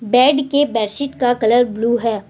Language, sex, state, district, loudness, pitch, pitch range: Hindi, female, Jharkhand, Deoghar, -16 LUFS, 245 Hz, 225-270 Hz